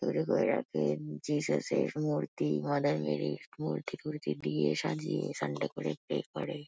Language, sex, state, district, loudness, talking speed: Bengali, female, West Bengal, Kolkata, -33 LUFS, 155 wpm